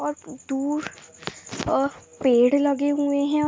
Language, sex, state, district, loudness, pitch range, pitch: Hindi, female, Jharkhand, Sahebganj, -23 LUFS, 270-285 Hz, 280 Hz